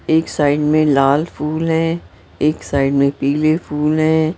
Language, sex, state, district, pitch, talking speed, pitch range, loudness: Hindi, female, Maharashtra, Mumbai Suburban, 155 Hz, 165 wpm, 145-160 Hz, -16 LUFS